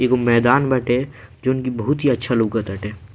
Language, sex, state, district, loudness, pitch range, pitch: Bhojpuri, male, Bihar, Muzaffarpur, -19 LUFS, 110-130 Hz, 120 Hz